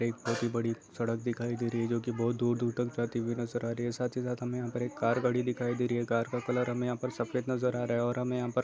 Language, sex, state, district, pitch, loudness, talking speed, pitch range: Hindi, male, Chhattisgarh, Bastar, 120 Hz, -32 LUFS, 335 wpm, 120-125 Hz